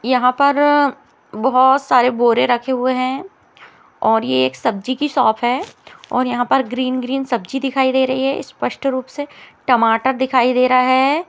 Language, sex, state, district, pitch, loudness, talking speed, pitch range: Hindi, female, Bihar, Sitamarhi, 255 Hz, -16 LUFS, 175 wpm, 245-270 Hz